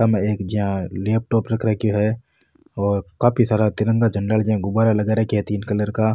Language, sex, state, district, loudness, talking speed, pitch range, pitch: Marwari, male, Rajasthan, Nagaur, -20 LUFS, 205 wpm, 105-110 Hz, 110 Hz